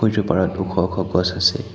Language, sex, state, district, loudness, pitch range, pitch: Assamese, male, Assam, Hailakandi, -20 LUFS, 90-95 Hz, 95 Hz